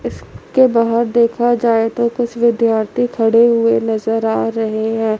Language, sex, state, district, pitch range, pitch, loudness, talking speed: Hindi, female, Chandigarh, Chandigarh, 225-235 Hz, 230 Hz, -15 LUFS, 150 wpm